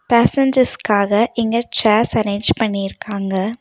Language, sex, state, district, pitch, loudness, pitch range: Tamil, female, Tamil Nadu, Nilgiris, 215 Hz, -16 LUFS, 200-235 Hz